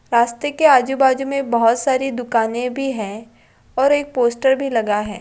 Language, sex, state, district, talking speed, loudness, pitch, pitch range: Hindi, female, Bihar, Vaishali, 170 wpm, -18 LUFS, 250 Hz, 230-270 Hz